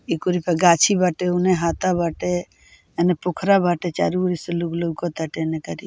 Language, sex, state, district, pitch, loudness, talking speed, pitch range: Bhojpuri, female, Bihar, Muzaffarpur, 175 Hz, -21 LUFS, 175 wpm, 170-180 Hz